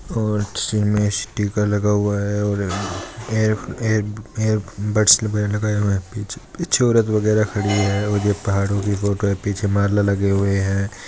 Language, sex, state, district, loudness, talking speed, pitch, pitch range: Hindi, male, Rajasthan, Churu, -20 LUFS, 155 wpm, 105 Hz, 100-105 Hz